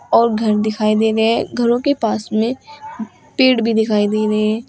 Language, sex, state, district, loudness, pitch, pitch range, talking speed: Hindi, female, Uttar Pradesh, Saharanpur, -16 LUFS, 225 Hz, 215-240 Hz, 205 wpm